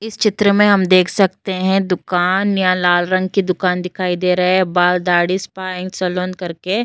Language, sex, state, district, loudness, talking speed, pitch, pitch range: Hindi, female, Uttar Pradesh, Jyotiba Phule Nagar, -16 LUFS, 200 wpm, 185 Hz, 180-195 Hz